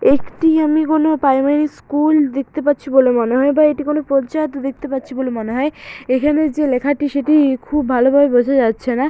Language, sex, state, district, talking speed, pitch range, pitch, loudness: Bengali, female, West Bengal, Malda, 185 wpm, 265-300 Hz, 280 Hz, -16 LUFS